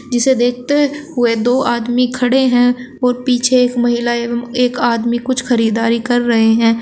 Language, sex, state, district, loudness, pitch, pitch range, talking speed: Hindi, female, Uttar Pradesh, Shamli, -14 LUFS, 245 Hz, 235-250 Hz, 165 wpm